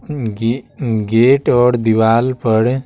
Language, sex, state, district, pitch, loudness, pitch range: Hindi, male, Bihar, Patna, 120 Hz, -15 LUFS, 110-130 Hz